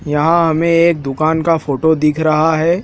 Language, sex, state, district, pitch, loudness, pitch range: Hindi, male, Madhya Pradesh, Dhar, 160 Hz, -14 LUFS, 155-165 Hz